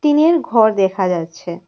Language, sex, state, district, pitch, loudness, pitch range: Bengali, female, Tripura, West Tripura, 195 Hz, -15 LUFS, 180-295 Hz